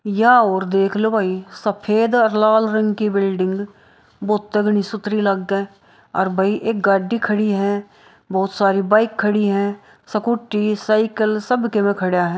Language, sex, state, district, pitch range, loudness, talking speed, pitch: Hindi, female, Bihar, Saharsa, 195-215 Hz, -18 LUFS, 160 wpm, 210 Hz